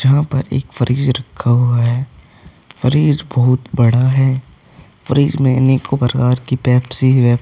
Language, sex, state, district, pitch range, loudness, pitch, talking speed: Hindi, male, Uttar Pradesh, Hamirpur, 125-135 Hz, -15 LUFS, 130 Hz, 145 wpm